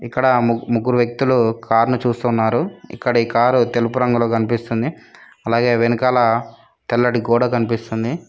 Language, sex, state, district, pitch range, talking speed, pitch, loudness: Telugu, female, Telangana, Mahabubabad, 115-125 Hz, 125 wpm, 120 Hz, -18 LUFS